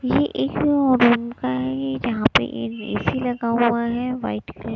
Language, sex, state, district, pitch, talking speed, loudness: Hindi, female, Punjab, Kapurthala, 235 Hz, 140 wpm, -21 LUFS